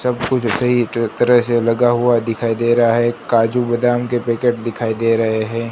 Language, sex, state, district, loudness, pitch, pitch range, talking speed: Hindi, male, Gujarat, Gandhinagar, -16 LUFS, 120 Hz, 115-120 Hz, 200 wpm